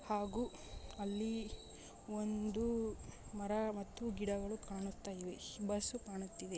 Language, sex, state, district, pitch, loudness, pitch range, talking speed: Kannada, female, Karnataka, Dharwad, 210 Hz, -43 LUFS, 200-220 Hz, 80 wpm